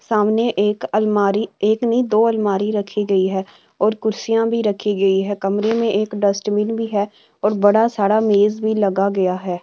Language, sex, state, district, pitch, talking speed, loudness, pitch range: Marwari, female, Rajasthan, Churu, 210 Hz, 185 wpm, -18 LUFS, 200-220 Hz